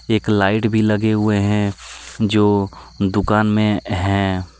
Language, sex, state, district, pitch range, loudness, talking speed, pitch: Hindi, male, Jharkhand, Deoghar, 100-105 Hz, -18 LUFS, 130 wpm, 105 Hz